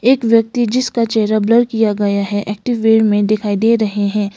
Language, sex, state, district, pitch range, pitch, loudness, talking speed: Hindi, female, Sikkim, Gangtok, 205-230 Hz, 220 Hz, -15 LUFS, 205 wpm